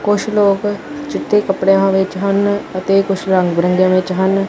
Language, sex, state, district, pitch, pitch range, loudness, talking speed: Punjabi, male, Punjab, Kapurthala, 195 Hz, 185-205 Hz, -15 LUFS, 175 wpm